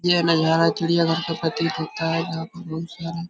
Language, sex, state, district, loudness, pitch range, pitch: Hindi, male, Uttar Pradesh, Hamirpur, -22 LUFS, 165-170 Hz, 165 Hz